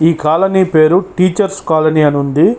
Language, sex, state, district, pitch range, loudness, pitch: Telugu, male, Andhra Pradesh, Chittoor, 155-190 Hz, -12 LUFS, 165 Hz